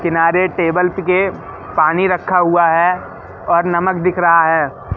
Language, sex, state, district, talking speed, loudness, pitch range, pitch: Hindi, male, Madhya Pradesh, Katni, 145 wpm, -14 LUFS, 165-180 Hz, 170 Hz